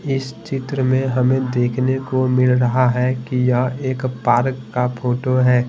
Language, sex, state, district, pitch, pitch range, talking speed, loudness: Hindi, male, Bihar, Patna, 130 Hz, 125-130 Hz, 170 wpm, -18 LUFS